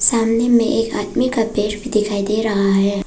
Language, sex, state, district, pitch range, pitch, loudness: Hindi, female, Arunachal Pradesh, Papum Pare, 205-230 Hz, 220 Hz, -17 LUFS